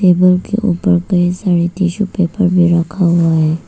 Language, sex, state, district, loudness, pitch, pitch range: Hindi, female, Arunachal Pradesh, Papum Pare, -13 LUFS, 180 Hz, 170-185 Hz